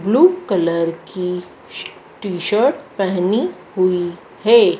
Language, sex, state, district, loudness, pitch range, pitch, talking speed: Hindi, female, Madhya Pradesh, Dhar, -18 LUFS, 180-245 Hz, 185 Hz, 100 wpm